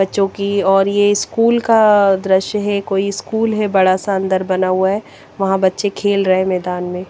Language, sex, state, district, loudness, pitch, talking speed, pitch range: Hindi, female, Chandigarh, Chandigarh, -15 LUFS, 195 Hz, 205 wpm, 190-205 Hz